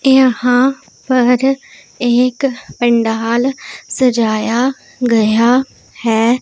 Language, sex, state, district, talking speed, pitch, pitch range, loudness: Hindi, female, Punjab, Pathankot, 65 wpm, 250 Hz, 235-260 Hz, -14 LUFS